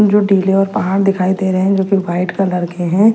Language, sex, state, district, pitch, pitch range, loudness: Hindi, female, Punjab, Kapurthala, 195 Hz, 185-195 Hz, -15 LUFS